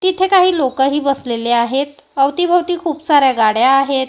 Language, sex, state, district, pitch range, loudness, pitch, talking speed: Marathi, female, Maharashtra, Gondia, 265-350 Hz, -14 LUFS, 275 Hz, 145 wpm